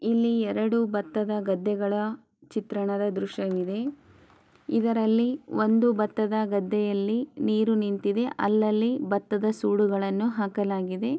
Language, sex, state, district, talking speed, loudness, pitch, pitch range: Kannada, female, Karnataka, Chamarajanagar, 85 wpm, -26 LUFS, 215 Hz, 200-225 Hz